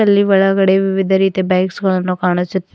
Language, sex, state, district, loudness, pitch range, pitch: Kannada, female, Karnataka, Bidar, -14 LUFS, 185-195 Hz, 190 Hz